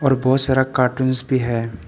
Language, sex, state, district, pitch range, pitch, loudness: Hindi, male, Arunachal Pradesh, Papum Pare, 125-130 Hz, 130 Hz, -17 LUFS